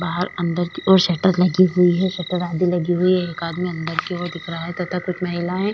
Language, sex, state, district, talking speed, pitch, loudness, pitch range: Hindi, female, Maharashtra, Chandrapur, 260 wpm, 180 Hz, -20 LUFS, 175-180 Hz